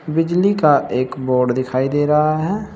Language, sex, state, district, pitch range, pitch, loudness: Hindi, male, Uttar Pradesh, Saharanpur, 130-165 Hz, 150 Hz, -17 LUFS